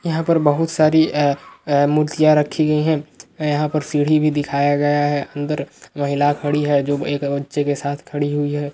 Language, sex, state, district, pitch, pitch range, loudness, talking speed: Magahi, male, Bihar, Gaya, 145 Hz, 145-150 Hz, -19 LUFS, 200 wpm